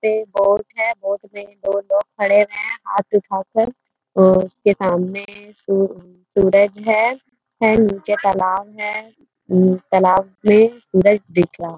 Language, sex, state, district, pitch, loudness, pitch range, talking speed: Hindi, female, Bihar, Jamui, 205 Hz, -17 LUFS, 190-220 Hz, 150 wpm